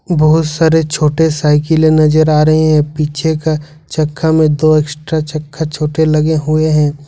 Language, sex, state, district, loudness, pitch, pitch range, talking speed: Hindi, male, Jharkhand, Ranchi, -12 LUFS, 155 Hz, 150-160 Hz, 160 wpm